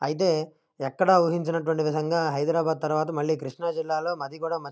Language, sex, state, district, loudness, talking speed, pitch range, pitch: Telugu, male, Andhra Pradesh, Krishna, -26 LUFS, 125 wpm, 155-165 Hz, 160 Hz